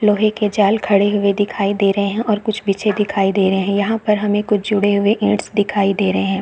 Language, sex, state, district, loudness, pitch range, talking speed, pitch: Hindi, female, Chhattisgarh, Bastar, -17 LUFS, 200-210 Hz, 250 wpm, 205 Hz